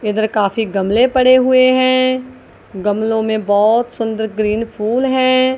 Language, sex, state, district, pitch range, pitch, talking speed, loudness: Hindi, female, Punjab, Kapurthala, 215-255 Hz, 225 Hz, 140 wpm, -15 LUFS